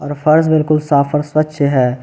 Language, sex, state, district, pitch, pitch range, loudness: Hindi, male, Jharkhand, Ranchi, 150 Hz, 140-155 Hz, -14 LUFS